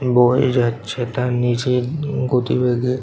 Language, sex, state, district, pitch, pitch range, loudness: Bengali, male, West Bengal, Kolkata, 125 Hz, 120-130 Hz, -19 LUFS